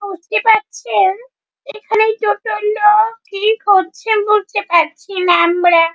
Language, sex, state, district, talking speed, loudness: Bengali, male, West Bengal, Jhargram, 110 wpm, -14 LUFS